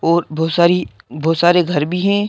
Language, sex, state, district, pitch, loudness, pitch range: Hindi, male, Madhya Pradesh, Bhopal, 170 Hz, -16 LUFS, 160-180 Hz